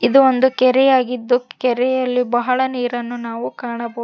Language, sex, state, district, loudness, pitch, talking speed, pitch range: Kannada, female, Karnataka, Koppal, -17 LUFS, 250 Hz, 135 wpm, 240-260 Hz